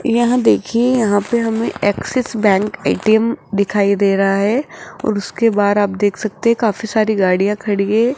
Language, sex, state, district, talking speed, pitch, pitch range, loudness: Hindi, female, Rajasthan, Jaipur, 170 wpm, 215 Hz, 200-230 Hz, -16 LUFS